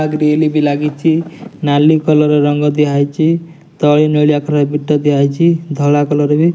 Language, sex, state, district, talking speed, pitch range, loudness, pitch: Odia, male, Odisha, Nuapada, 175 wpm, 145-160 Hz, -13 LUFS, 150 Hz